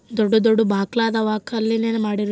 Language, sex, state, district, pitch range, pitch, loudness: Kannada, female, Karnataka, Gulbarga, 215-225 Hz, 220 Hz, -20 LUFS